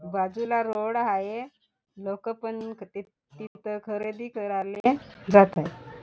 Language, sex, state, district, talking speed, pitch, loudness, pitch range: Marathi, female, Maharashtra, Chandrapur, 100 wpm, 210 Hz, -26 LUFS, 195-225 Hz